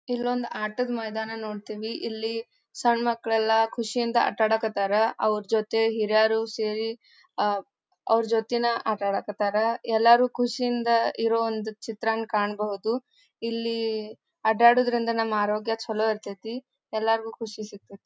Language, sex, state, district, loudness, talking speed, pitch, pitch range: Kannada, female, Karnataka, Dharwad, -26 LUFS, 110 wpm, 225 Hz, 215-235 Hz